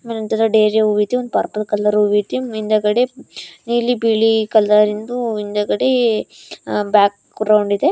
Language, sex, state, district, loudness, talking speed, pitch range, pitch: Kannada, female, Karnataka, Gulbarga, -17 LUFS, 120 wpm, 210-235 Hz, 215 Hz